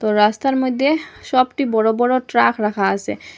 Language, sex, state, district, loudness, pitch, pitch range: Bengali, female, Assam, Hailakandi, -18 LUFS, 230 Hz, 210-260 Hz